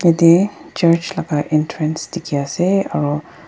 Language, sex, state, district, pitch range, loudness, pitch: Nagamese, female, Nagaland, Dimapur, 150-180 Hz, -17 LUFS, 165 Hz